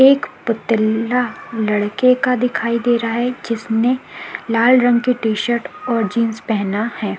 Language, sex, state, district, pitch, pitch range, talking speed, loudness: Hindi, female, Chhattisgarh, Korba, 230 Hz, 220-245 Hz, 150 wpm, -17 LUFS